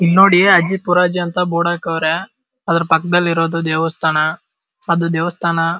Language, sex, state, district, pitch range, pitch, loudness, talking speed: Kannada, male, Karnataka, Dharwad, 165-180 Hz, 170 Hz, -15 LUFS, 135 wpm